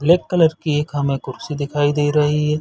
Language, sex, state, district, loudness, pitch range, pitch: Hindi, male, Chhattisgarh, Bilaspur, -19 LUFS, 145-150 Hz, 150 Hz